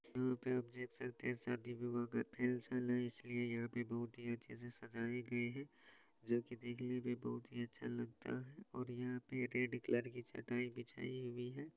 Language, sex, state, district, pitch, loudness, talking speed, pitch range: Hindi, male, Bihar, Supaul, 120 Hz, -44 LUFS, 215 wpm, 120-125 Hz